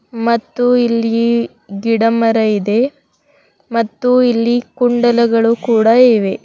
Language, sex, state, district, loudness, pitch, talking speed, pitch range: Kannada, female, Karnataka, Bidar, -14 LUFS, 230 Hz, 85 wpm, 225-240 Hz